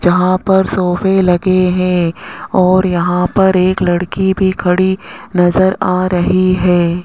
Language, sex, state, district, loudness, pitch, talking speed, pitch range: Hindi, male, Rajasthan, Jaipur, -13 LUFS, 185 Hz, 135 wpm, 180-190 Hz